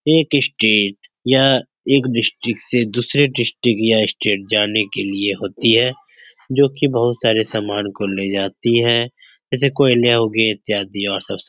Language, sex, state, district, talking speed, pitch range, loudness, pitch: Hindi, male, Uttar Pradesh, Muzaffarnagar, 135 wpm, 105-125 Hz, -17 LUFS, 115 Hz